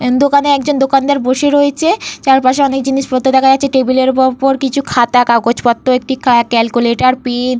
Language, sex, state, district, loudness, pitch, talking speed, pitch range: Bengali, female, Jharkhand, Jamtara, -12 LUFS, 265 Hz, 165 wpm, 250-275 Hz